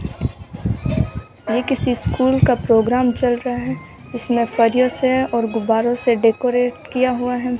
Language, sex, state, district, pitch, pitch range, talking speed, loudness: Hindi, female, Rajasthan, Bikaner, 245 Hz, 230-250 Hz, 140 wpm, -18 LUFS